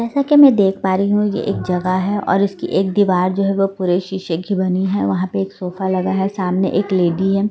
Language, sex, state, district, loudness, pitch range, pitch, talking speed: Hindi, female, Delhi, New Delhi, -17 LUFS, 185-200 Hz, 190 Hz, 255 wpm